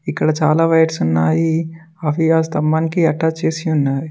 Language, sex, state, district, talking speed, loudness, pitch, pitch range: Telugu, male, Telangana, Mahabubabad, 145 wpm, -17 LUFS, 160 Hz, 155-160 Hz